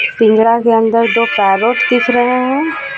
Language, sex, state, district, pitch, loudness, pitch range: Hindi, female, Jharkhand, Ranchi, 235 Hz, -12 LUFS, 225-250 Hz